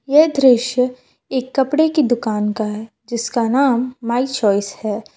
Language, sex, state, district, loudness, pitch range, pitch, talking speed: Hindi, female, Jharkhand, Palamu, -18 LUFS, 220-265 Hz, 245 Hz, 150 wpm